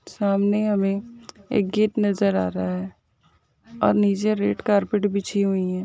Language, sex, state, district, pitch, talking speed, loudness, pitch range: Hindi, female, Uttarakhand, Uttarkashi, 200 Hz, 155 wpm, -22 LUFS, 185-210 Hz